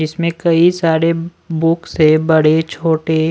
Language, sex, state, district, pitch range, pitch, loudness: Hindi, male, Delhi, New Delhi, 160-170 Hz, 165 Hz, -14 LUFS